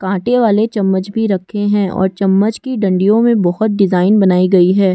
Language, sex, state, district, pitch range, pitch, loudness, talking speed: Hindi, female, Chhattisgarh, Kabirdham, 190-215 Hz, 195 Hz, -13 LUFS, 205 wpm